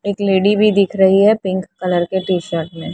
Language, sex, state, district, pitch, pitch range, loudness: Hindi, female, Maharashtra, Mumbai Suburban, 190 Hz, 180-200 Hz, -15 LUFS